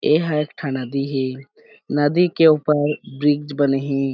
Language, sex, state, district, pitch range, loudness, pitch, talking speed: Chhattisgarhi, male, Chhattisgarh, Jashpur, 135-150 Hz, -20 LUFS, 145 Hz, 160 wpm